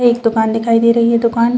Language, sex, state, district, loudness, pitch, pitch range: Hindi, female, Chhattisgarh, Bastar, -13 LUFS, 230 Hz, 230-235 Hz